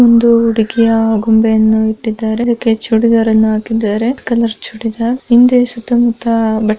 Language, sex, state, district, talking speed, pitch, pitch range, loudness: Kannada, female, Karnataka, Mysore, 125 wpm, 225 Hz, 220-235 Hz, -12 LUFS